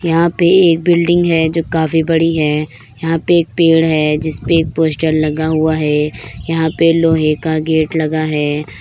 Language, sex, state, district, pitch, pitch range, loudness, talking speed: Hindi, female, Bihar, Begusarai, 160 Hz, 155-165 Hz, -14 LUFS, 185 wpm